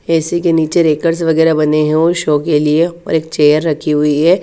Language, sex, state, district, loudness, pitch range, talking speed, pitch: Hindi, female, Haryana, Charkhi Dadri, -13 LUFS, 150-165 Hz, 245 wpm, 160 Hz